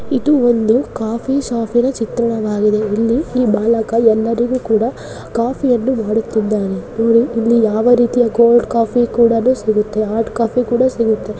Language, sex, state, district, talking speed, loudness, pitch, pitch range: Kannada, female, Karnataka, Dakshina Kannada, 100 wpm, -15 LUFS, 230 Hz, 220-245 Hz